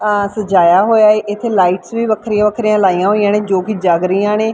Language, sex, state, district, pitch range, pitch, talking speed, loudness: Punjabi, female, Punjab, Fazilka, 190-215 Hz, 210 Hz, 225 wpm, -13 LUFS